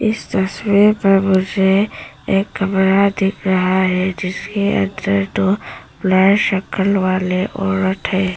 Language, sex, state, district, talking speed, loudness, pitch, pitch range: Hindi, female, Arunachal Pradesh, Papum Pare, 120 wpm, -16 LUFS, 190 Hz, 185-195 Hz